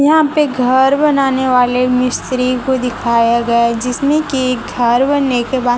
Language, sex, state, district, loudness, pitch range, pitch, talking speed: Hindi, female, Chhattisgarh, Raipur, -14 LUFS, 245-270 Hz, 255 Hz, 165 wpm